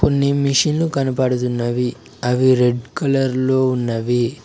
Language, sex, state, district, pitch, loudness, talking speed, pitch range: Telugu, male, Telangana, Mahabubabad, 130 Hz, -18 LUFS, 110 wpm, 120-140 Hz